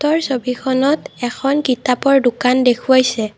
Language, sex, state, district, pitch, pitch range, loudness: Assamese, female, Assam, Kamrup Metropolitan, 255 Hz, 245-275 Hz, -16 LUFS